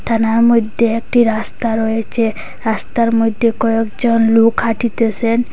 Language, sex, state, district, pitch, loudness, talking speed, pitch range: Bengali, female, Assam, Hailakandi, 230 Hz, -15 LUFS, 110 wpm, 225-230 Hz